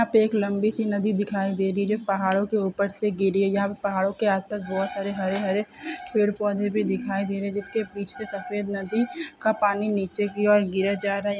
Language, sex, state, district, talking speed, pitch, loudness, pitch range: Hindi, male, Chhattisgarh, Korba, 245 wpm, 200 Hz, -25 LUFS, 195-210 Hz